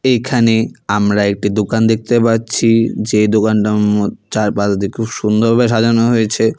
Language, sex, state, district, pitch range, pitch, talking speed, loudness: Bengali, male, West Bengal, Alipurduar, 105-115 Hz, 110 Hz, 135 wpm, -14 LUFS